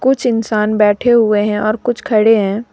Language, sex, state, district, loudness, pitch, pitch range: Hindi, female, Jharkhand, Deoghar, -13 LUFS, 220 Hz, 210-240 Hz